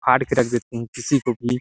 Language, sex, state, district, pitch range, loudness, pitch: Hindi, male, Chhattisgarh, Sarguja, 120-125 Hz, -22 LUFS, 125 Hz